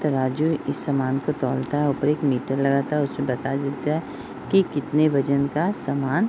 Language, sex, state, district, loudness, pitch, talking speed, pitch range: Hindi, female, Uttar Pradesh, Deoria, -23 LUFS, 140 Hz, 220 wpm, 135-150 Hz